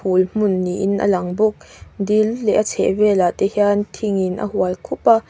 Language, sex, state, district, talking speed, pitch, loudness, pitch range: Mizo, female, Mizoram, Aizawl, 205 wpm, 205 Hz, -18 LUFS, 185-210 Hz